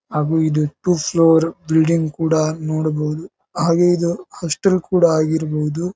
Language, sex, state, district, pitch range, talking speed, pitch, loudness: Kannada, male, Karnataka, Bijapur, 155-170 Hz, 120 wpm, 160 Hz, -18 LUFS